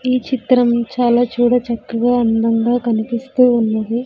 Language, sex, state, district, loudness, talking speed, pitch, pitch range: Telugu, female, Andhra Pradesh, Sri Satya Sai, -16 LUFS, 120 wpm, 240 Hz, 230-245 Hz